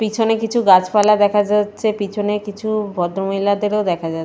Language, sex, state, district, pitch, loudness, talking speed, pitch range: Bengali, female, West Bengal, Jalpaiguri, 205 Hz, -17 LUFS, 155 wpm, 195-210 Hz